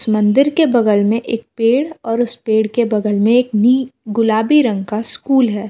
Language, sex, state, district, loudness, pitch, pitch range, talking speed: Hindi, female, Jharkhand, Palamu, -15 LUFS, 230 Hz, 215-250 Hz, 190 wpm